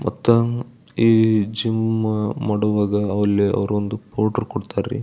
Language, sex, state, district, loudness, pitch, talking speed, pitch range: Kannada, male, Karnataka, Belgaum, -20 LUFS, 110 Hz, 105 wpm, 105-115 Hz